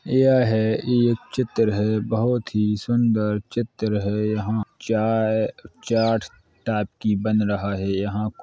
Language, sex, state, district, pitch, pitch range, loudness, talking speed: Hindi, male, Uttar Pradesh, Hamirpur, 110 Hz, 105-115 Hz, -22 LUFS, 135 wpm